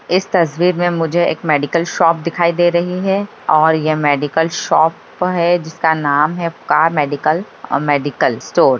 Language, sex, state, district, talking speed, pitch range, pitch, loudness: Hindi, female, Bihar, Begusarai, 170 wpm, 155-175 Hz, 165 Hz, -15 LUFS